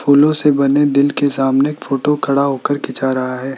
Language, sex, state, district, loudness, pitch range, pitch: Hindi, male, Rajasthan, Jaipur, -15 LUFS, 135-145 Hz, 140 Hz